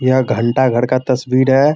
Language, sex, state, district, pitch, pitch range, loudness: Hindi, male, Bihar, Sitamarhi, 130 Hz, 125-130 Hz, -15 LUFS